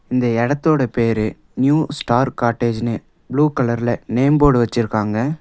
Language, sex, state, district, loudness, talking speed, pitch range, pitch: Tamil, male, Tamil Nadu, Nilgiris, -18 LUFS, 120 wpm, 115-140 Hz, 120 Hz